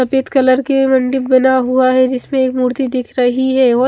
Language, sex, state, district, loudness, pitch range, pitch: Hindi, female, Chandigarh, Chandigarh, -13 LUFS, 255-265 Hz, 260 Hz